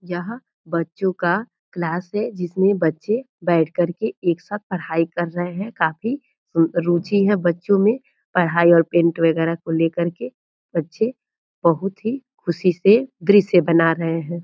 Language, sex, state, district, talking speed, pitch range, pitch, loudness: Hindi, female, Bihar, Purnia, 160 wpm, 170-205 Hz, 175 Hz, -20 LUFS